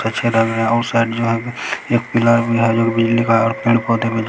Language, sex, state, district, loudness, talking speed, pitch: Hindi, male, Bihar, Bhagalpur, -16 LUFS, 250 wpm, 115 Hz